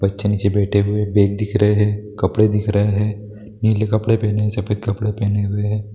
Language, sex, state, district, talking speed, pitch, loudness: Hindi, male, Bihar, Lakhisarai, 210 wpm, 105 Hz, -18 LUFS